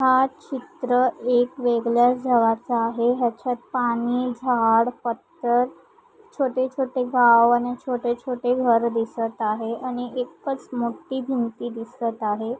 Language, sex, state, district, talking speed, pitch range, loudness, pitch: Marathi, female, Maharashtra, Chandrapur, 115 wpm, 235-255 Hz, -23 LUFS, 245 Hz